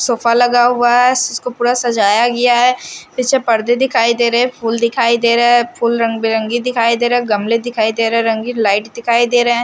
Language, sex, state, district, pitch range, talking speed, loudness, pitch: Hindi, male, Odisha, Nuapada, 230-245 Hz, 235 wpm, -14 LUFS, 235 Hz